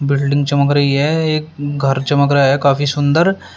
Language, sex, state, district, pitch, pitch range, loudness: Hindi, male, Uttar Pradesh, Shamli, 145 Hz, 140-145 Hz, -15 LUFS